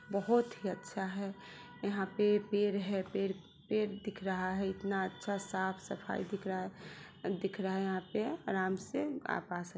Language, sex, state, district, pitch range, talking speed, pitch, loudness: Hindi, female, Bihar, Sitamarhi, 190-205 Hz, 180 wpm, 195 Hz, -37 LUFS